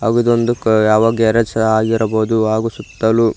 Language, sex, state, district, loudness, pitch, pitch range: Kannada, male, Karnataka, Koppal, -15 LUFS, 110 Hz, 110-115 Hz